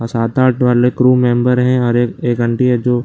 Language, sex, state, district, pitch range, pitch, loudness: Hindi, male, Bihar, Lakhisarai, 120-125 Hz, 125 Hz, -13 LUFS